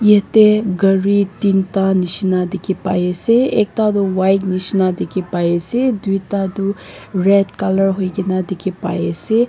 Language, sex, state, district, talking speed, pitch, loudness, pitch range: Nagamese, female, Nagaland, Kohima, 120 wpm, 195 Hz, -16 LUFS, 185-200 Hz